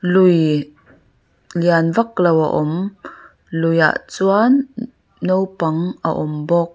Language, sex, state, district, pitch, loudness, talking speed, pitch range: Mizo, female, Mizoram, Aizawl, 170 Hz, -17 LUFS, 105 wpm, 160-190 Hz